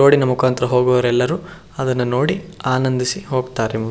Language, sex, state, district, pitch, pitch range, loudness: Kannada, male, Karnataka, Shimoga, 130 Hz, 125-145 Hz, -18 LUFS